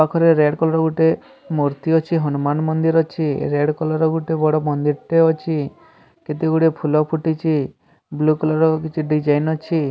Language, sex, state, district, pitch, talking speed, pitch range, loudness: Odia, male, Odisha, Sambalpur, 155 Hz, 165 wpm, 150-160 Hz, -19 LUFS